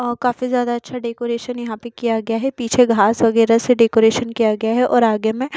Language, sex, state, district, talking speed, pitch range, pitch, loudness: Hindi, female, Odisha, Nuapada, 235 wpm, 225-245 Hz, 235 Hz, -17 LUFS